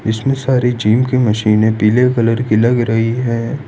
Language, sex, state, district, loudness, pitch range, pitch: Hindi, male, Gujarat, Valsad, -14 LUFS, 110-125 Hz, 115 Hz